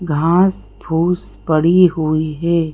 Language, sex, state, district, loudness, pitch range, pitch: Hindi, female, Madhya Pradesh, Bhopal, -16 LUFS, 155-175 Hz, 165 Hz